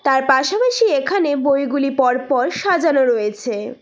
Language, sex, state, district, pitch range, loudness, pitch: Bengali, female, West Bengal, Cooch Behar, 255-330 Hz, -17 LUFS, 275 Hz